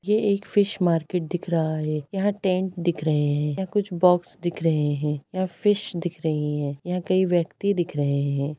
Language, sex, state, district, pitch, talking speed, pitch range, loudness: Hindi, female, Bihar, Gaya, 175 Hz, 200 wpm, 150-185 Hz, -24 LUFS